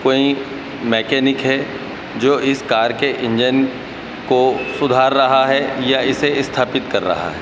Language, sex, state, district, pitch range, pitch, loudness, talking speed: Hindi, male, Madhya Pradesh, Dhar, 130-135 Hz, 135 Hz, -16 LUFS, 145 wpm